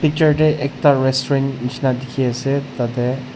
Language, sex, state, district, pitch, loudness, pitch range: Nagamese, male, Nagaland, Dimapur, 135 Hz, -18 LUFS, 125-140 Hz